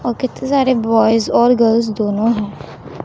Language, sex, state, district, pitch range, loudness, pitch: Hindi, female, Chhattisgarh, Raipur, 220-245 Hz, -15 LUFS, 230 Hz